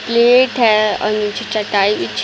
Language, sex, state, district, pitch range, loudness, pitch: Hindi, female, Uttar Pradesh, Jalaun, 205-235 Hz, -14 LUFS, 215 Hz